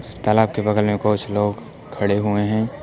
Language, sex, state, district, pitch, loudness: Hindi, male, Uttar Pradesh, Lucknow, 105 Hz, -20 LUFS